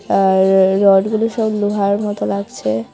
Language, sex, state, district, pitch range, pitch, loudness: Bengali, female, Tripura, Unakoti, 190-210 Hz, 200 Hz, -15 LUFS